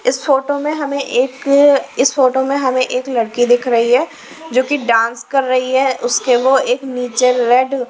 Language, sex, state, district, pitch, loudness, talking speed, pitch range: Hindi, female, Himachal Pradesh, Shimla, 260 Hz, -15 LUFS, 190 wpm, 245-280 Hz